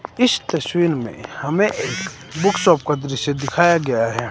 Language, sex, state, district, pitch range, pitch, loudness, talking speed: Hindi, male, Himachal Pradesh, Shimla, 135-175 Hz, 150 Hz, -19 LUFS, 155 wpm